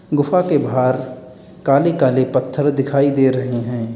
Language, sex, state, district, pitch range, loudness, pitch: Hindi, male, Uttar Pradesh, Lalitpur, 130-145 Hz, -17 LUFS, 135 Hz